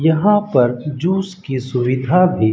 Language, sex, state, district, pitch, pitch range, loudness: Hindi, male, Rajasthan, Bikaner, 150 Hz, 125-185 Hz, -17 LUFS